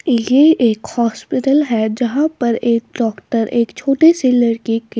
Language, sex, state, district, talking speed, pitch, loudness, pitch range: Hindi, female, Bihar, West Champaran, 155 wpm, 235 Hz, -15 LUFS, 230-275 Hz